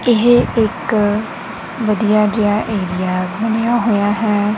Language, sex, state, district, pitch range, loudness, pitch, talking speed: Punjabi, female, Punjab, Kapurthala, 205-225 Hz, -16 LUFS, 210 Hz, 105 wpm